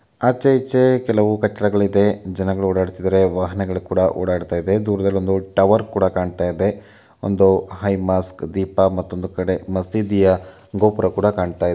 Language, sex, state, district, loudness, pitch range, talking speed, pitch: Kannada, male, Karnataka, Mysore, -19 LUFS, 95-100 Hz, 150 wpm, 95 Hz